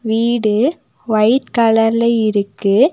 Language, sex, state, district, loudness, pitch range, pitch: Tamil, female, Tamil Nadu, Nilgiris, -15 LUFS, 215-240 Hz, 225 Hz